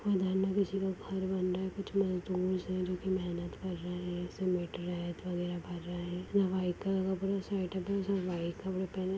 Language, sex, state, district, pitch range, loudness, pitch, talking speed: Hindi, female, Chhattisgarh, Sarguja, 180-190 Hz, -35 LUFS, 185 Hz, 220 wpm